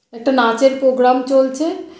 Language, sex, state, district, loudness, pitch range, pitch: Bengali, female, West Bengal, North 24 Parganas, -15 LUFS, 250-275 Hz, 265 Hz